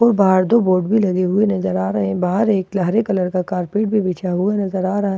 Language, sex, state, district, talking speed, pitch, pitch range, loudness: Hindi, female, Bihar, Katihar, 290 wpm, 190 Hz, 180-205 Hz, -18 LUFS